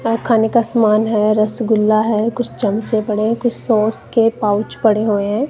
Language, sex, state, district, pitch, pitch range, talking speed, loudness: Hindi, female, Punjab, Kapurthala, 220 Hz, 215-230 Hz, 175 wpm, -16 LUFS